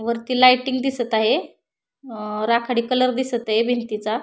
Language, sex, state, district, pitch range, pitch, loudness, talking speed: Marathi, female, Maharashtra, Pune, 220-255 Hz, 235 Hz, -20 LUFS, 130 wpm